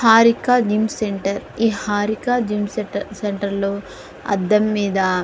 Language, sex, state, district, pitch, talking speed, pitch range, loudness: Telugu, female, Andhra Pradesh, Guntur, 210 Hz, 105 wpm, 200-220 Hz, -19 LUFS